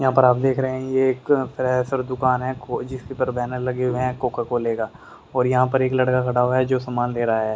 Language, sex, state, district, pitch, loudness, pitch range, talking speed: Hindi, male, Haryana, Rohtak, 125 Hz, -22 LUFS, 125-130 Hz, 270 wpm